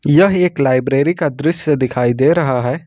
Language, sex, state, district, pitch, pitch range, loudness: Hindi, male, Jharkhand, Ranchi, 145 Hz, 130-165 Hz, -15 LUFS